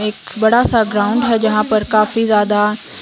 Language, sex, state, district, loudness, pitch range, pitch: Hindi, female, Himachal Pradesh, Shimla, -14 LUFS, 210-225 Hz, 215 Hz